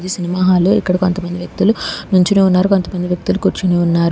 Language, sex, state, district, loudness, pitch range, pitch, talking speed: Telugu, female, Telangana, Hyderabad, -15 LUFS, 180-190 Hz, 185 Hz, 160 wpm